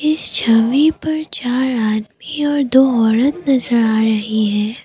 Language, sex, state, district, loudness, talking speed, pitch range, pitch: Hindi, female, Assam, Kamrup Metropolitan, -15 LUFS, 150 wpm, 220-290 Hz, 250 Hz